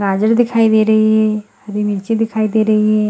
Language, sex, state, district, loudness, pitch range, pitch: Hindi, female, Bihar, Gaya, -14 LUFS, 210-220 Hz, 215 Hz